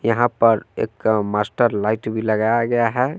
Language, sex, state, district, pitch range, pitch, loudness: Hindi, male, Bihar, West Champaran, 110-120 Hz, 115 Hz, -19 LUFS